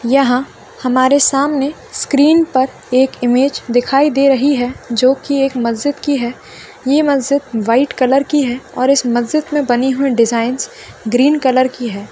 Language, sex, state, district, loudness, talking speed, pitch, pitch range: Hindi, female, Maharashtra, Solapur, -14 LUFS, 165 wpm, 265 Hz, 245-280 Hz